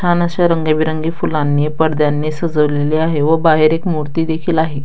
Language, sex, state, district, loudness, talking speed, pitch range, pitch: Marathi, female, Maharashtra, Dhule, -15 LUFS, 160 wpm, 150-165 Hz, 160 Hz